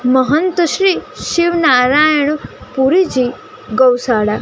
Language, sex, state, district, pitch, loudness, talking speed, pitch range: Gujarati, female, Gujarat, Gandhinagar, 280 Hz, -13 LUFS, 80 wpm, 250-340 Hz